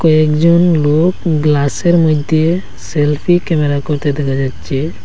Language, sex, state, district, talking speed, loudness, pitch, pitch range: Bengali, male, Assam, Hailakandi, 105 wpm, -13 LUFS, 155 Hz, 145-170 Hz